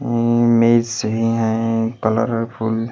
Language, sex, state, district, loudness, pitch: Hindi, male, Maharashtra, Washim, -18 LUFS, 115 Hz